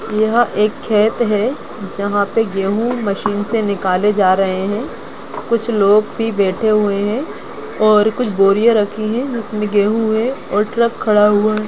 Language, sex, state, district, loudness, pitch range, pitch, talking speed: Hindi, female, Jharkhand, Sahebganj, -16 LUFS, 205-225 Hz, 210 Hz, 165 wpm